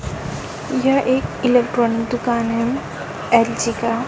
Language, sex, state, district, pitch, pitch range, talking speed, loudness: Hindi, female, Chhattisgarh, Raipur, 240 Hz, 230-250 Hz, 105 wpm, -19 LUFS